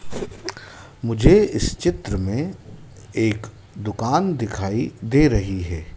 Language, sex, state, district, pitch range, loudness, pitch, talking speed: Hindi, male, Madhya Pradesh, Dhar, 100-140 Hz, -21 LUFS, 110 Hz, 100 wpm